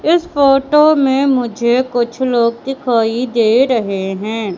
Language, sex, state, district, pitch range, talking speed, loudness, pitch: Hindi, female, Madhya Pradesh, Katni, 230-270 Hz, 130 wpm, -14 LUFS, 245 Hz